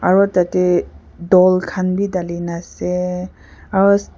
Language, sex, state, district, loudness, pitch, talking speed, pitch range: Nagamese, female, Nagaland, Kohima, -17 LUFS, 185 Hz, 130 wpm, 180-190 Hz